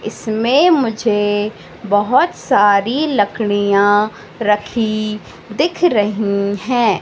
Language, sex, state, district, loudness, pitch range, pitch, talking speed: Hindi, female, Madhya Pradesh, Katni, -15 LUFS, 205-230 Hz, 210 Hz, 75 wpm